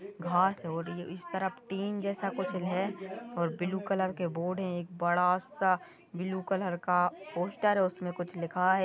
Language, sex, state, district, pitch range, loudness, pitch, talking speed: Hindi, female, Chhattisgarh, Kabirdham, 175-190 Hz, -32 LUFS, 185 Hz, 190 wpm